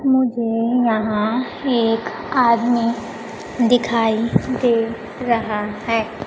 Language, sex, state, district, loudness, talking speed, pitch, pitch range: Hindi, female, Bihar, Kaimur, -19 LUFS, 75 wpm, 230 Hz, 225-245 Hz